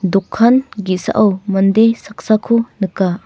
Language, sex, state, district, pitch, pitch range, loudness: Garo, female, Meghalaya, North Garo Hills, 210 Hz, 195-225 Hz, -15 LUFS